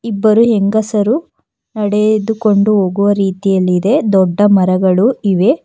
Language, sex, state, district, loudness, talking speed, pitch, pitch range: Kannada, female, Karnataka, Bangalore, -12 LUFS, 85 wpm, 205 Hz, 195-220 Hz